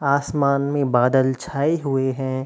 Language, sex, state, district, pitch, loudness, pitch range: Hindi, male, Uttar Pradesh, Hamirpur, 140 Hz, -20 LUFS, 130-140 Hz